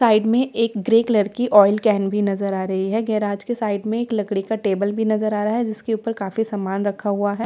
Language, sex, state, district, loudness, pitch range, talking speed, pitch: Hindi, female, Delhi, New Delhi, -20 LUFS, 200-225 Hz, 265 wpm, 215 Hz